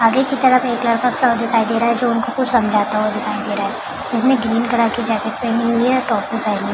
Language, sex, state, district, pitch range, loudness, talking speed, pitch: Hindi, female, Bihar, Madhepura, 220-245 Hz, -17 LUFS, 265 wpm, 235 Hz